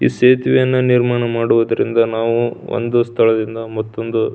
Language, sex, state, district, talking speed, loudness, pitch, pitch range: Kannada, male, Karnataka, Belgaum, 110 wpm, -16 LUFS, 115 Hz, 115-120 Hz